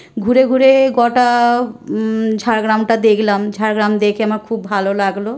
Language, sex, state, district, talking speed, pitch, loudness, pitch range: Bengali, male, West Bengal, Jhargram, 135 wpm, 220 Hz, -14 LUFS, 210-240 Hz